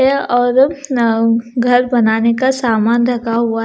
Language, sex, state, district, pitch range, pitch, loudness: Hindi, female, Punjab, Kapurthala, 230-250 Hz, 240 Hz, -14 LUFS